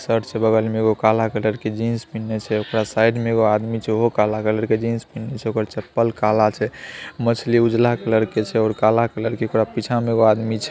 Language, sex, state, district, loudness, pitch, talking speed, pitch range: Maithili, male, Bihar, Saharsa, -20 LUFS, 110 Hz, 245 wpm, 110-115 Hz